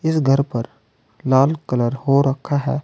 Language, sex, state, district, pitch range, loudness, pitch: Hindi, male, Uttar Pradesh, Saharanpur, 130-145 Hz, -19 LUFS, 135 Hz